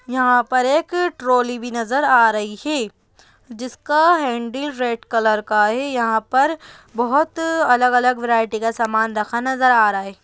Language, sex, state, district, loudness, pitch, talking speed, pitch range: Hindi, female, Bihar, Gaya, -18 LUFS, 245 Hz, 160 wpm, 225-265 Hz